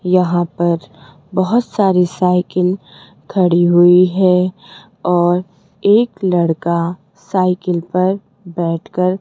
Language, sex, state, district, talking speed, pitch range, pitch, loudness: Hindi, female, Rajasthan, Jaipur, 105 wpm, 175-185 Hz, 180 Hz, -15 LUFS